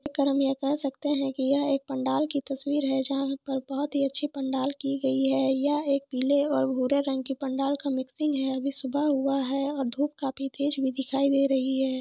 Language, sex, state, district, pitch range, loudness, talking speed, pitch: Hindi, female, Jharkhand, Sahebganj, 270-280 Hz, -27 LUFS, 230 wpm, 275 Hz